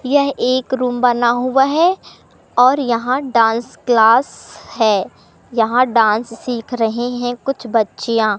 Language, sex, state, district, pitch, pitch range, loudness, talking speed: Hindi, male, Madhya Pradesh, Katni, 245 Hz, 225-255 Hz, -16 LUFS, 130 wpm